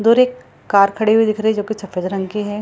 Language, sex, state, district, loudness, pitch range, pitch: Hindi, female, Bihar, Gaya, -17 LUFS, 200-220 Hz, 215 Hz